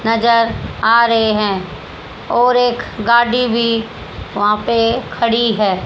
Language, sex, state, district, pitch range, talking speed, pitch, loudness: Hindi, female, Haryana, Rohtak, 220-235 Hz, 125 wpm, 230 Hz, -15 LUFS